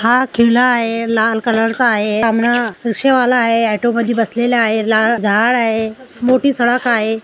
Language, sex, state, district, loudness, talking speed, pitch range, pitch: Marathi, female, Maharashtra, Aurangabad, -14 LUFS, 165 wpm, 225-245 Hz, 230 Hz